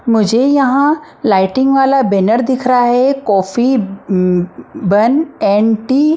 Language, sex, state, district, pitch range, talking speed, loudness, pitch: Hindi, female, Maharashtra, Mumbai Suburban, 205-270 Hz, 135 wpm, -13 LUFS, 245 Hz